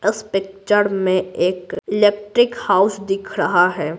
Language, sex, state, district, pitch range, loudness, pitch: Hindi, female, Bihar, Patna, 185-205 Hz, -18 LUFS, 195 Hz